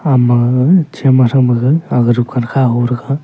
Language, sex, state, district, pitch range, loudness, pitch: Wancho, male, Arunachal Pradesh, Longding, 120-135 Hz, -12 LUFS, 125 Hz